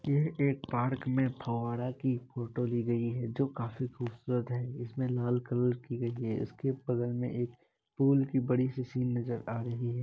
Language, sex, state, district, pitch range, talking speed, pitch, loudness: Hindi, male, Bihar, Kishanganj, 120-130 Hz, 195 wpm, 125 Hz, -33 LUFS